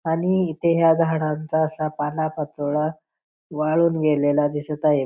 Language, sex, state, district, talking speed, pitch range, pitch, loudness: Marathi, female, Maharashtra, Pune, 120 wpm, 150-165 Hz, 155 Hz, -22 LUFS